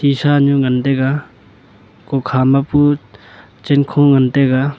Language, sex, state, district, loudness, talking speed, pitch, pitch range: Wancho, male, Arunachal Pradesh, Longding, -14 LUFS, 125 wpm, 135 Hz, 125-140 Hz